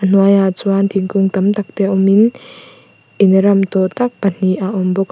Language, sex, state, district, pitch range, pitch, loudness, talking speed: Mizo, female, Mizoram, Aizawl, 190-200 Hz, 195 Hz, -14 LUFS, 200 wpm